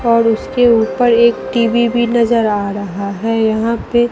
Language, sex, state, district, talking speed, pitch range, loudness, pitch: Hindi, female, Bihar, Katihar, 175 wpm, 220-235 Hz, -14 LUFS, 230 Hz